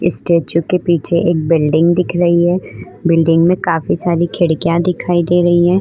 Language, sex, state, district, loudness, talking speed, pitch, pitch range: Hindi, female, Uttar Pradesh, Budaun, -14 LUFS, 175 wpm, 170 Hz, 165-175 Hz